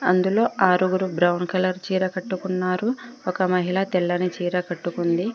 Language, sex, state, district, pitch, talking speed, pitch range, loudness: Telugu, female, Telangana, Mahabubabad, 185 Hz, 125 wpm, 180-190 Hz, -23 LUFS